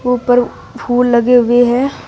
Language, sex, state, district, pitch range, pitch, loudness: Hindi, female, Uttar Pradesh, Shamli, 245-250 Hz, 245 Hz, -12 LUFS